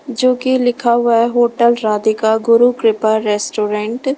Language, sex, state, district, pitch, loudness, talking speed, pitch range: Hindi, female, Uttar Pradesh, Lalitpur, 235 Hz, -14 LUFS, 160 wpm, 220-245 Hz